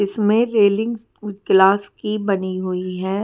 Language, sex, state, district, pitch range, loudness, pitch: Hindi, female, Haryana, Charkhi Dadri, 190-210 Hz, -18 LUFS, 200 Hz